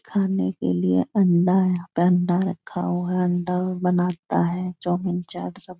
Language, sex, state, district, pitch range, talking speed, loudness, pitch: Hindi, female, Bihar, Jahanabad, 175-185 Hz, 185 wpm, -23 LUFS, 180 Hz